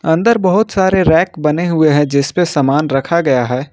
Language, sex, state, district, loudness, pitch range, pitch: Hindi, male, Jharkhand, Ranchi, -13 LUFS, 140-180 Hz, 160 Hz